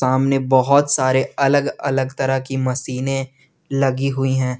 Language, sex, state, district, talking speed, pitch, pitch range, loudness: Hindi, male, Jharkhand, Garhwa, 145 wpm, 135 Hz, 130-135 Hz, -19 LUFS